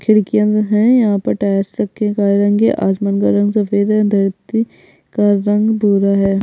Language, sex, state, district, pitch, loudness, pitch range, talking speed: Hindi, female, Chhattisgarh, Bastar, 205 Hz, -15 LUFS, 200-215 Hz, 130 wpm